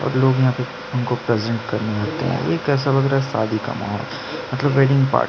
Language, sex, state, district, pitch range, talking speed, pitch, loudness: Hindi, male, Chhattisgarh, Sukma, 115-135 Hz, 145 wpm, 125 Hz, -20 LUFS